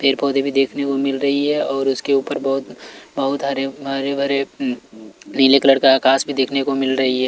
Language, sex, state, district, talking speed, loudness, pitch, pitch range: Hindi, male, Chhattisgarh, Raipur, 225 wpm, -18 LUFS, 135 Hz, 135-140 Hz